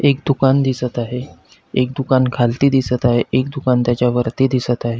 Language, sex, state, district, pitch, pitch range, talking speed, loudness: Marathi, male, Maharashtra, Pune, 125 Hz, 120-135 Hz, 180 wpm, -17 LUFS